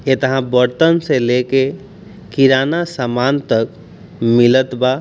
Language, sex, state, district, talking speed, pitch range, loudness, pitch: Hindi, male, Bihar, East Champaran, 105 wpm, 125-165 Hz, -15 LUFS, 135 Hz